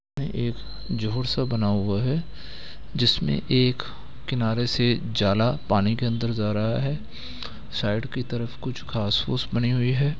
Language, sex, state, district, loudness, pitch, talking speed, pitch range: Hindi, male, Bihar, Gaya, -25 LUFS, 120 Hz, 145 wpm, 110-130 Hz